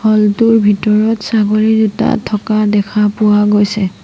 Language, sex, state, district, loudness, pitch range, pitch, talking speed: Assamese, female, Assam, Sonitpur, -12 LUFS, 210-220 Hz, 210 Hz, 135 wpm